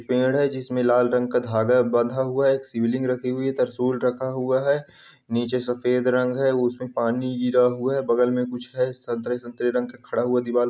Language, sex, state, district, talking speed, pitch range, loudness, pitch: Hindi, male, Bihar, Muzaffarpur, 220 wpm, 120-130 Hz, -23 LUFS, 125 Hz